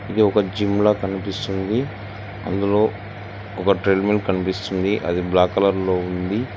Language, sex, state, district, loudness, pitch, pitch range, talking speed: Telugu, male, Telangana, Hyderabad, -20 LUFS, 100 Hz, 95-105 Hz, 135 wpm